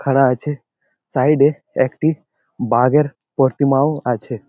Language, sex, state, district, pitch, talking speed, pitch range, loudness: Bengali, male, West Bengal, Malda, 135 Hz, 105 wpm, 125-150 Hz, -17 LUFS